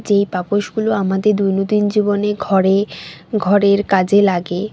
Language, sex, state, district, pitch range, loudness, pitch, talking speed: Bengali, female, West Bengal, Jalpaiguri, 190-205 Hz, -16 LUFS, 200 Hz, 125 wpm